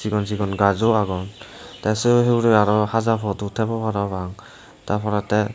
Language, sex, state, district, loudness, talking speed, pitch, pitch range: Chakma, male, Tripura, Unakoti, -21 LUFS, 160 wpm, 105 Hz, 100-110 Hz